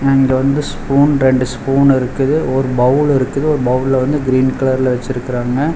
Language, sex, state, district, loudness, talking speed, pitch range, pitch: Tamil, male, Tamil Nadu, Chennai, -14 LUFS, 155 wpm, 130-140 Hz, 130 Hz